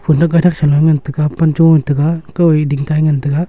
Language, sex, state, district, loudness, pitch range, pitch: Wancho, male, Arunachal Pradesh, Longding, -13 LUFS, 150-165 Hz, 155 Hz